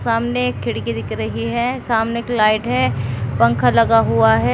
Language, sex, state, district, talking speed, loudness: Hindi, female, Uttar Pradesh, Shamli, 185 wpm, -18 LUFS